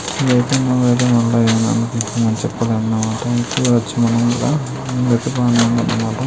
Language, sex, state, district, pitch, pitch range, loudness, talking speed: Telugu, male, Karnataka, Gulbarga, 120 Hz, 115-125 Hz, -16 LUFS, 55 wpm